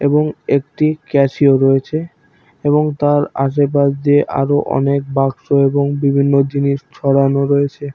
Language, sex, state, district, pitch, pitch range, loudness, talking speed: Bengali, male, West Bengal, Paschim Medinipur, 140 Hz, 140-145 Hz, -15 LUFS, 120 wpm